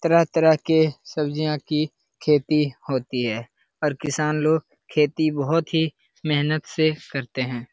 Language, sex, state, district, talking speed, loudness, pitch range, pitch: Hindi, male, Bihar, Lakhisarai, 130 wpm, -23 LUFS, 145-160 Hz, 150 Hz